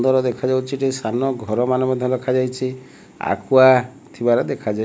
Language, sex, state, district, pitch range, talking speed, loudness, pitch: Odia, male, Odisha, Malkangiri, 125-130 Hz, 150 wpm, -19 LUFS, 130 Hz